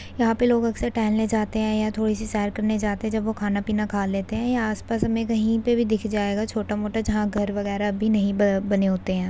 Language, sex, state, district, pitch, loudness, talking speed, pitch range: Hindi, female, Uttar Pradesh, Budaun, 215 Hz, -24 LUFS, 250 wpm, 205-220 Hz